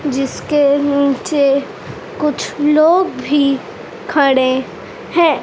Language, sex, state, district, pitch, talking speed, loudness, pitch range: Hindi, female, Madhya Pradesh, Dhar, 285 Hz, 75 wpm, -15 LUFS, 275-300 Hz